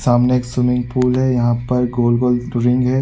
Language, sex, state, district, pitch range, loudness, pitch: Hindi, male, Chhattisgarh, Korba, 120-125 Hz, -17 LUFS, 125 Hz